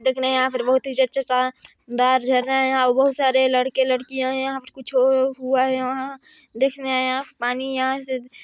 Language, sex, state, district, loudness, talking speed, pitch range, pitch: Hindi, female, Chhattisgarh, Sarguja, -21 LUFS, 185 wpm, 255-265 Hz, 260 Hz